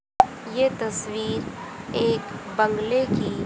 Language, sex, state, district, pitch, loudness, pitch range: Hindi, female, Haryana, Jhajjar, 225 Hz, -24 LUFS, 215-255 Hz